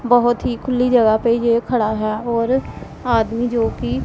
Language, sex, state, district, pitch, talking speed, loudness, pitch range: Hindi, female, Punjab, Pathankot, 235 Hz, 195 wpm, -18 LUFS, 220-245 Hz